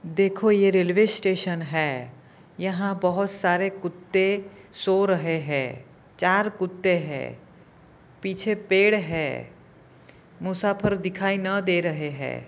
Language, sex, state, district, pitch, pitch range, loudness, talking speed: Hindi, male, Jharkhand, Jamtara, 185 Hz, 165-195 Hz, -24 LUFS, 115 wpm